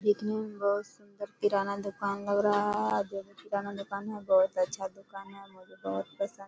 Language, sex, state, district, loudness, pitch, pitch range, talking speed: Hindi, female, Chhattisgarh, Korba, -31 LUFS, 200 Hz, 195-205 Hz, 215 wpm